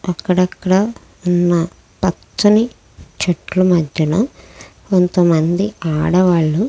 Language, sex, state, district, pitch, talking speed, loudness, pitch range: Telugu, female, Andhra Pradesh, Krishna, 180 Hz, 70 wpm, -16 LUFS, 170-190 Hz